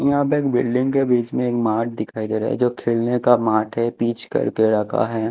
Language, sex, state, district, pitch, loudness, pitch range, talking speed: Hindi, male, Chhattisgarh, Raipur, 120 Hz, -20 LUFS, 110-125 Hz, 250 wpm